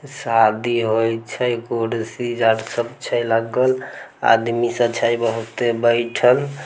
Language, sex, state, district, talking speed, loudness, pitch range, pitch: Maithili, male, Bihar, Samastipur, 110 wpm, -19 LUFS, 115-120 Hz, 120 Hz